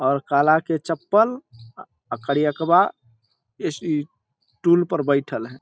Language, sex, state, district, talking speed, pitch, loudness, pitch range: Maithili, male, Bihar, Samastipur, 115 wpm, 145 Hz, -21 LUFS, 125-165 Hz